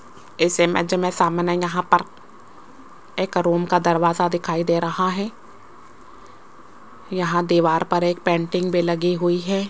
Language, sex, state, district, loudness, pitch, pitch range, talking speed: Hindi, female, Rajasthan, Jaipur, -20 LUFS, 175 Hz, 170-180 Hz, 140 wpm